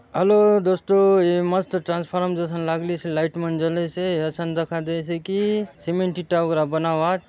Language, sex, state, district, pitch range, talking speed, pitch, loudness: Halbi, male, Chhattisgarh, Bastar, 165-185 Hz, 165 wpm, 170 Hz, -22 LUFS